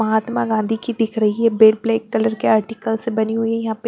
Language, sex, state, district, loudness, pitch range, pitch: Hindi, female, Bihar, West Champaran, -18 LUFS, 220-230 Hz, 225 Hz